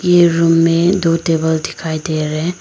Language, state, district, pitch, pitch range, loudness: Hindi, Arunachal Pradesh, Lower Dibang Valley, 165 Hz, 160-170 Hz, -14 LUFS